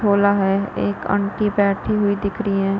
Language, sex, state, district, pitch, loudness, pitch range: Hindi, female, Chhattisgarh, Korba, 200 Hz, -20 LUFS, 195-205 Hz